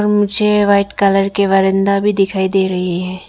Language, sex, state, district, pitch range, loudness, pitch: Hindi, female, Arunachal Pradesh, Lower Dibang Valley, 190-200 Hz, -14 LUFS, 195 Hz